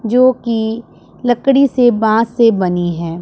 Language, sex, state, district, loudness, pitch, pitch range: Hindi, male, Punjab, Pathankot, -14 LUFS, 230 Hz, 215-245 Hz